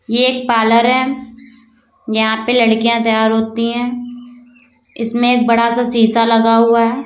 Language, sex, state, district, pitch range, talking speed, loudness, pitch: Hindi, female, Uttar Pradesh, Lalitpur, 230-245 Hz, 155 wpm, -13 LUFS, 235 Hz